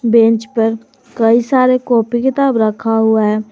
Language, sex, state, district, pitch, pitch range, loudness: Hindi, female, Jharkhand, Garhwa, 230 Hz, 225-250 Hz, -13 LUFS